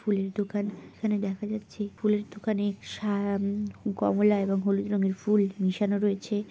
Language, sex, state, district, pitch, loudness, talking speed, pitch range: Bengali, female, West Bengal, Purulia, 205 Hz, -28 LUFS, 145 wpm, 200-210 Hz